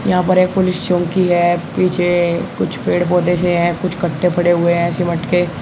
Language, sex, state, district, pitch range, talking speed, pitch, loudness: Hindi, male, Uttar Pradesh, Shamli, 175-180 Hz, 205 wpm, 175 Hz, -16 LUFS